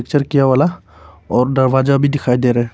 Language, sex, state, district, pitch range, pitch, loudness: Hindi, male, Arunachal Pradesh, Papum Pare, 120-140 Hz, 130 Hz, -15 LUFS